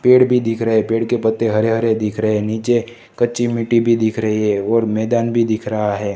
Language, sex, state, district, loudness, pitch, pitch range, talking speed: Hindi, male, Gujarat, Gandhinagar, -17 LUFS, 115 Hz, 110-115 Hz, 255 wpm